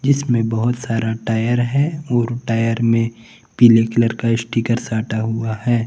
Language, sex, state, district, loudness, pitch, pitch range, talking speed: Hindi, male, Jharkhand, Garhwa, -18 LUFS, 115 Hz, 115-120 Hz, 155 wpm